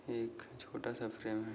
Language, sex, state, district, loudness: Hindi, male, Goa, North and South Goa, -43 LUFS